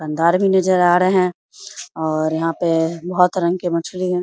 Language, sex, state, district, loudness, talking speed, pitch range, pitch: Hindi, female, Bihar, Samastipur, -18 LUFS, 200 wpm, 165-180 Hz, 175 Hz